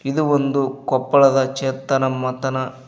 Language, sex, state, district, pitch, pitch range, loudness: Kannada, male, Karnataka, Koppal, 135 Hz, 130-140 Hz, -19 LUFS